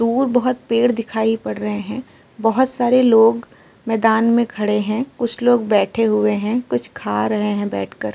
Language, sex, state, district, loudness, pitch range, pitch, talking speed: Hindi, female, Uttar Pradesh, Muzaffarnagar, -18 LUFS, 210-240 Hz, 225 Hz, 185 wpm